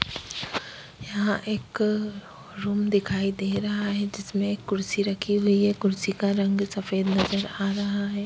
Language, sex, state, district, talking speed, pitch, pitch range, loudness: Hindi, female, Goa, North and South Goa, 155 wpm, 200 Hz, 195-205 Hz, -26 LUFS